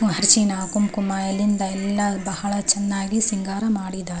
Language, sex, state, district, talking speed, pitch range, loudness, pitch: Kannada, female, Karnataka, Raichur, 115 wpm, 195-205 Hz, -20 LUFS, 200 Hz